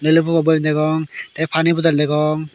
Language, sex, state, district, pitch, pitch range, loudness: Chakma, male, Tripura, Dhalai, 155 Hz, 155-160 Hz, -17 LUFS